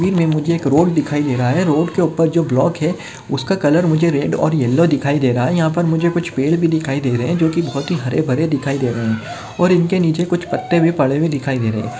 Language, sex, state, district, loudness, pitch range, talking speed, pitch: Hindi, male, Maharashtra, Chandrapur, -16 LUFS, 140-170 Hz, 280 wpm, 160 Hz